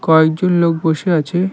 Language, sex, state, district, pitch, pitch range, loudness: Bengali, male, West Bengal, Cooch Behar, 170 Hz, 160-180 Hz, -15 LUFS